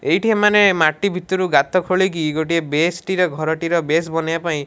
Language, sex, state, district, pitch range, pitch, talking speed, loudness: Odia, male, Odisha, Malkangiri, 160-185 Hz, 170 Hz, 190 wpm, -18 LUFS